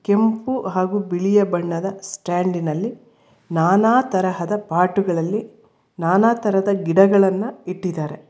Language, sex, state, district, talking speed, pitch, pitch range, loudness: Kannada, female, Karnataka, Bangalore, 85 wpm, 195 Hz, 180-210 Hz, -19 LUFS